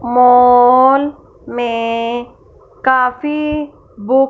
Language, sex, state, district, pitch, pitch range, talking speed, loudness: Hindi, female, Punjab, Fazilka, 250 Hz, 240-270 Hz, 70 wpm, -13 LUFS